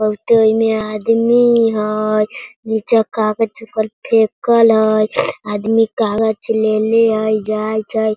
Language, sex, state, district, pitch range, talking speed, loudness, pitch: Hindi, female, Bihar, Sitamarhi, 215-225 Hz, 120 wpm, -15 LUFS, 220 Hz